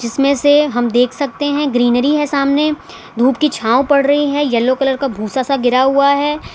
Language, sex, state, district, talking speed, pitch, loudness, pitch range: Hindi, female, Gujarat, Valsad, 210 wpm, 275 Hz, -14 LUFS, 250-290 Hz